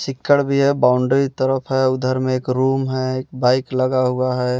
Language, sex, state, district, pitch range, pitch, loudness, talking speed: Hindi, male, Bihar, West Champaran, 130-135 Hz, 130 Hz, -18 LUFS, 210 wpm